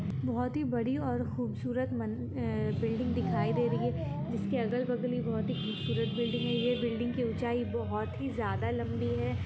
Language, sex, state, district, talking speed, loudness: Hindi, female, Bihar, Muzaffarpur, 185 wpm, -33 LUFS